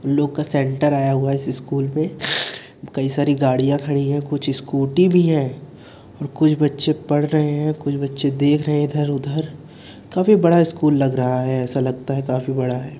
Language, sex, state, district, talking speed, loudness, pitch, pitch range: Hindi, male, Uttar Pradesh, Etah, 200 wpm, -19 LUFS, 145 Hz, 135-150 Hz